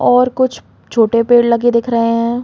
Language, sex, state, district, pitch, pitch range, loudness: Hindi, female, Chhattisgarh, Raigarh, 235 Hz, 230-245 Hz, -13 LUFS